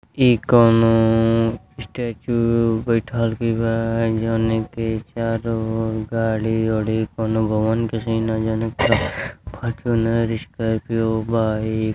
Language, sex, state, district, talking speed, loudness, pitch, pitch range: Bhojpuri, male, Uttar Pradesh, Deoria, 110 wpm, -20 LUFS, 115 Hz, 110-115 Hz